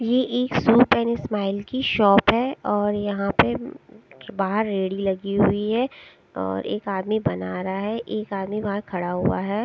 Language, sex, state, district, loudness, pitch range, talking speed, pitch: Hindi, female, Odisha, Sambalpur, -23 LUFS, 195-230 Hz, 175 wpm, 205 Hz